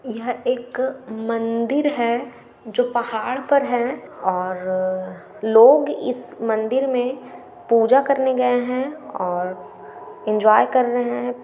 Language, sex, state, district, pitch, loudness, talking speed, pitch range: Hindi, female, Bihar, Gaya, 240 Hz, -20 LUFS, 115 wpm, 220-255 Hz